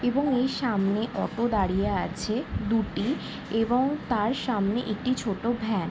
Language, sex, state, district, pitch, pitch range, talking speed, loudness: Bengali, female, West Bengal, Jalpaiguri, 225 Hz, 205-250 Hz, 140 wpm, -27 LUFS